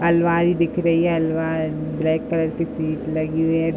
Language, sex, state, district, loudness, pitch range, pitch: Hindi, female, Uttar Pradesh, Budaun, -21 LUFS, 160-170 Hz, 160 Hz